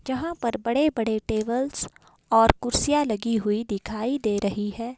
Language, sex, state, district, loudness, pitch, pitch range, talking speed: Hindi, female, Himachal Pradesh, Shimla, -25 LUFS, 230 Hz, 215-260 Hz, 155 wpm